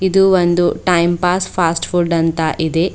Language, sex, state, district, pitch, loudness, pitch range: Kannada, female, Karnataka, Bidar, 175 Hz, -15 LUFS, 165-180 Hz